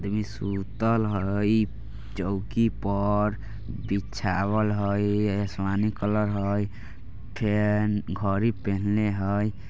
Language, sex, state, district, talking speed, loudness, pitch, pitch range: Bajjika, male, Bihar, Vaishali, 95 wpm, -26 LUFS, 105 Hz, 100-105 Hz